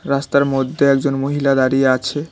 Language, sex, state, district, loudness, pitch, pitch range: Bengali, male, West Bengal, Cooch Behar, -16 LUFS, 140 Hz, 135-140 Hz